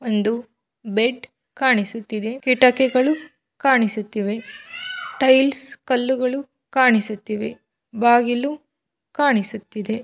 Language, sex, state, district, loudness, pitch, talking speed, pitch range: Kannada, female, Karnataka, Belgaum, -20 LUFS, 250 Hz, 60 wpm, 220-270 Hz